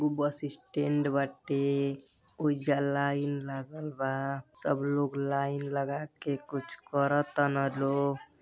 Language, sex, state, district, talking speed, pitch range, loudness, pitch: Bhojpuri, male, Uttar Pradesh, Deoria, 105 wpm, 140-145 Hz, -31 LUFS, 140 Hz